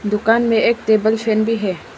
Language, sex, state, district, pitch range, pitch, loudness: Hindi, female, Arunachal Pradesh, Lower Dibang Valley, 215-225 Hz, 220 Hz, -16 LUFS